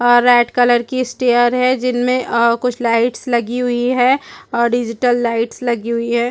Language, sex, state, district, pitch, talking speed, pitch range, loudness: Hindi, female, Chhattisgarh, Rajnandgaon, 245 Hz, 170 wpm, 235-250 Hz, -16 LUFS